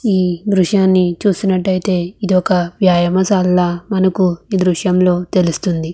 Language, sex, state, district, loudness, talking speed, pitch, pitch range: Telugu, female, Andhra Pradesh, Krishna, -15 LUFS, 130 wpm, 185 Hz, 175-190 Hz